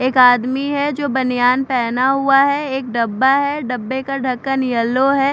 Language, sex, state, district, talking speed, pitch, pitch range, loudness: Hindi, female, Maharashtra, Mumbai Suburban, 180 wpm, 265 Hz, 250-275 Hz, -16 LUFS